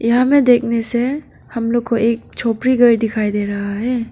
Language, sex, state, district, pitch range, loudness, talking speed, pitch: Hindi, female, Arunachal Pradesh, Papum Pare, 225-245 Hz, -16 LUFS, 205 wpm, 235 Hz